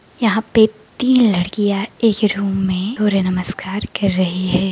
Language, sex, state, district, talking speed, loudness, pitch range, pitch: Hindi, female, Uttar Pradesh, Etah, 150 wpm, -17 LUFS, 190-220 Hz, 200 Hz